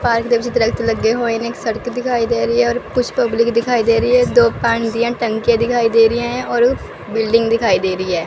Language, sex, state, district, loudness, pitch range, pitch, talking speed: Hindi, female, Chandigarh, Chandigarh, -16 LUFS, 230-240 Hz, 235 Hz, 240 wpm